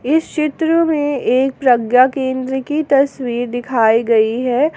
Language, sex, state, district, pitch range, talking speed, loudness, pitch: Hindi, female, Jharkhand, Garhwa, 245-295 Hz, 140 wpm, -15 LUFS, 265 Hz